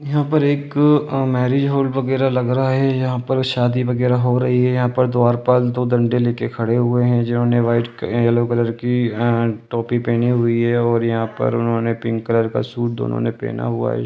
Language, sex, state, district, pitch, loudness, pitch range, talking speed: Hindi, male, Bihar, Lakhisarai, 120 Hz, -18 LUFS, 115-130 Hz, 210 wpm